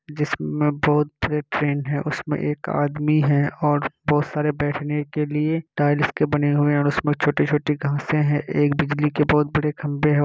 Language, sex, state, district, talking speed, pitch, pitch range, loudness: Hindi, male, Bihar, Kishanganj, 185 wpm, 150 Hz, 145-150 Hz, -22 LUFS